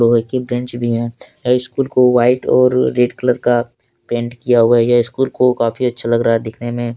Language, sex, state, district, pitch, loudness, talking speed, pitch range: Hindi, male, Jharkhand, Deoghar, 120 Hz, -15 LUFS, 235 wpm, 120-125 Hz